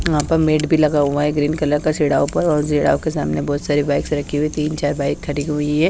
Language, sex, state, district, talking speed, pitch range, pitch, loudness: Hindi, female, Haryana, Charkhi Dadri, 255 wpm, 145-155 Hz, 150 Hz, -18 LUFS